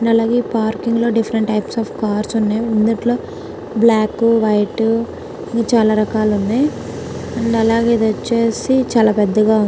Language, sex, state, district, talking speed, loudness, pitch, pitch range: Telugu, female, Telangana, Karimnagar, 130 wpm, -16 LUFS, 225 Hz, 215-230 Hz